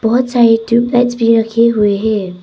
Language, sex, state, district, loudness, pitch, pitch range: Hindi, female, Arunachal Pradesh, Papum Pare, -12 LUFS, 230 Hz, 220-240 Hz